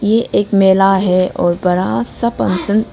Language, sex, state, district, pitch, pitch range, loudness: Hindi, female, Arunachal Pradesh, Lower Dibang Valley, 190 Hz, 180-210 Hz, -14 LUFS